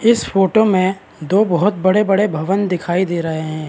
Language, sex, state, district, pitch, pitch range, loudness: Hindi, male, Uttarakhand, Uttarkashi, 190 Hz, 170-205 Hz, -16 LUFS